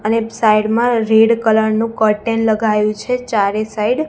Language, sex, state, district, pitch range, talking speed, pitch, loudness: Gujarati, female, Gujarat, Gandhinagar, 215-230 Hz, 175 wpm, 220 Hz, -15 LUFS